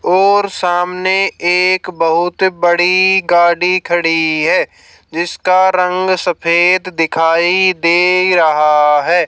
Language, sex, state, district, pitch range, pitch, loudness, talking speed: Hindi, male, Haryana, Jhajjar, 170-185 Hz, 180 Hz, -12 LUFS, 95 wpm